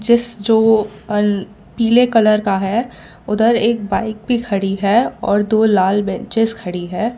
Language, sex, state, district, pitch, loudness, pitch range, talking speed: Hindi, female, Gujarat, Valsad, 220 Hz, -16 LUFS, 205-230 Hz, 160 wpm